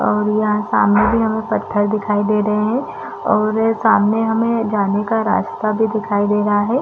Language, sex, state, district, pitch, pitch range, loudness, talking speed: Hindi, female, Chhattisgarh, Raigarh, 215 Hz, 210-225 Hz, -17 LUFS, 185 wpm